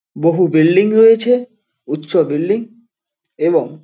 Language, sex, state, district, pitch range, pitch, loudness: Bengali, male, West Bengal, Paschim Medinipur, 165-225 Hz, 205 Hz, -14 LUFS